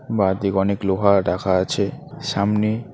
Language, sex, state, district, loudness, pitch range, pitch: Bengali, male, West Bengal, Alipurduar, -20 LUFS, 95-100 Hz, 100 Hz